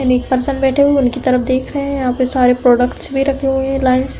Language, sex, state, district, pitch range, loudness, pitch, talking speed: Hindi, female, Uttar Pradesh, Hamirpur, 255-275 Hz, -15 LUFS, 260 Hz, 285 wpm